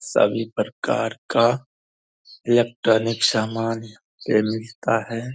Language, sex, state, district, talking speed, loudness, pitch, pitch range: Hindi, male, Bihar, Purnia, 100 wpm, -22 LUFS, 115 Hz, 110-115 Hz